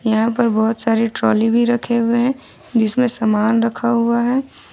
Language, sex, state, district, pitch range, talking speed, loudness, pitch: Hindi, female, Jharkhand, Ranchi, 225-240 Hz, 175 wpm, -17 LUFS, 230 Hz